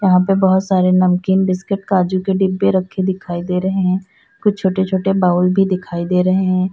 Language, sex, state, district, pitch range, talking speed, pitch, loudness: Hindi, female, Uttar Pradesh, Lalitpur, 185-190 Hz, 205 wpm, 190 Hz, -16 LUFS